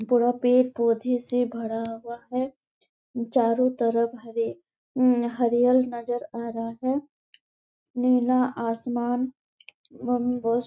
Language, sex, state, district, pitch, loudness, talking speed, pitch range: Hindi, female, Chhattisgarh, Bastar, 245 Hz, -25 LUFS, 110 wpm, 235-250 Hz